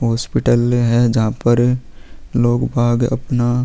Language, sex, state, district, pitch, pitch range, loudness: Hindi, male, Chhattisgarh, Sukma, 120 Hz, 115-120 Hz, -16 LUFS